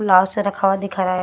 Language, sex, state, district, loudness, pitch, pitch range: Hindi, female, Bihar, Gaya, -19 LUFS, 195 Hz, 185-200 Hz